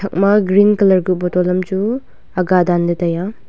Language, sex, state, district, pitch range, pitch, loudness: Wancho, female, Arunachal Pradesh, Longding, 180-200 Hz, 185 Hz, -15 LUFS